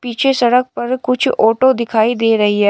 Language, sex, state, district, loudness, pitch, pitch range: Hindi, male, Uttar Pradesh, Shamli, -14 LUFS, 240 Hz, 225-255 Hz